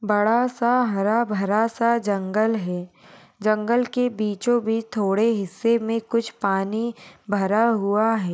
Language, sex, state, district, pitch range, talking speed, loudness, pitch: Hindi, female, Chhattisgarh, Balrampur, 205-230 Hz, 130 wpm, -22 LUFS, 220 Hz